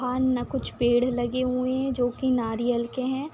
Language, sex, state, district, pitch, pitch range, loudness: Hindi, female, Bihar, Madhepura, 250 Hz, 240-260 Hz, -26 LUFS